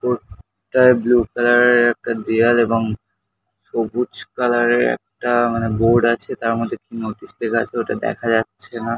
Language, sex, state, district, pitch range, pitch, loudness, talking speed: Bengali, male, West Bengal, North 24 Parganas, 110-120 Hz, 115 Hz, -18 LUFS, 155 wpm